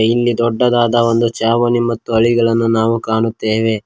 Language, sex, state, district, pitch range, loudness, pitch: Kannada, male, Karnataka, Koppal, 115-120 Hz, -14 LUFS, 115 Hz